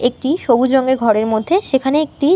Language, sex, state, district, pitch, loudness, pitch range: Bengali, female, West Bengal, North 24 Parganas, 265 Hz, -15 LUFS, 240-300 Hz